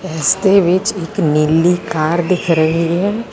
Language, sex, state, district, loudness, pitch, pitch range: Punjabi, female, Karnataka, Bangalore, -14 LUFS, 175 Hz, 160-190 Hz